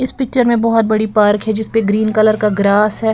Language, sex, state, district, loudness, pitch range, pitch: Hindi, female, Bihar, Patna, -14 LUFS, 210-225 Hz, 220 Hz